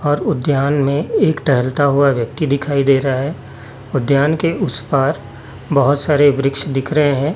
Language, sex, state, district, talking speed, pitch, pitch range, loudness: Hindi, male, Chhattisgarh, Raipur, 180 wpm, 140 Hz, 135-145 Hz, -16 LUFS